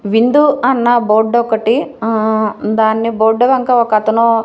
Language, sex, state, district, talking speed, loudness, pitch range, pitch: Telugu, female, Andhra Pradesh, Manyam, 110 wpm, -13 LUFS, 220-240 Hz, 225 Hz